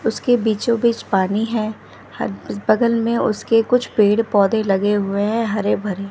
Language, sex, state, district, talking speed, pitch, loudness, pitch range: Hindi, female, Bihar, West Champaran, 145 wpm, 215 Hz, -18 LUFS, 200-230 Hz